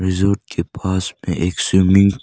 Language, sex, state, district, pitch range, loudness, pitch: Hindi, male, Arunachal Pradesh, Lower Dibang Valley, 90-100 Hz, -18 LUFS, 95 Hz